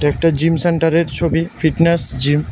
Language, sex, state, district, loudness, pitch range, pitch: Bengali, male, Tripura, West Tripura, -16 LUFS, 150-165 Hz, 165 Hz